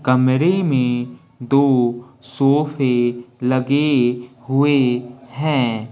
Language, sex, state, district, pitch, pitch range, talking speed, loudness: Hindi, male, Bihar, Patna, 130 Hz, 125-140 Hz, 70 wpm, -18 LUFS